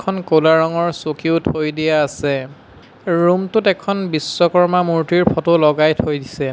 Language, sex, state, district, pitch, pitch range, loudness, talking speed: Assamese, male, Assam, Sonitpur, 165 Hz, 155-175 Hz, -16 LUFS, 145 wpm